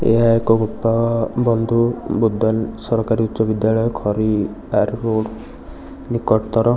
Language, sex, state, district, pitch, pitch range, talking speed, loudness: Odia, male, Odisha, Nuapada, 115 Hz, 110-115 Hz, 90 wpm, -18 LUFS